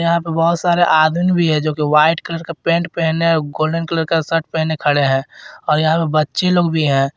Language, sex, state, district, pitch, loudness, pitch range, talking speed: Hindi, male, Jharkhand, Garhwa, 165 Hz, -16 LUFS, 155-170 Hz, 225 wpm